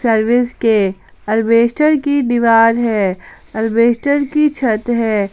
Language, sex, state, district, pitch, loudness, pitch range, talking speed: Hindi, female, Jharkhand, Palamu, 230 Hz, -14 LUFS, 220-255 Hz, 110 wpm